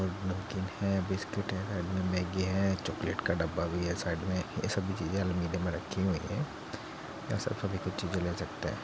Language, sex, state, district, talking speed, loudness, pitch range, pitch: Hindi, male, Uttar Pradesh, Muzaffarnagar, 225 wpm, -34 LUFS, 90-95 Hz, 95 Hz